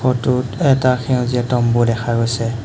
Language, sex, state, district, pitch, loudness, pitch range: Assamese, male, Assam, Hailakandi, 125 Hz, -17 LUFS, 115-125 Hz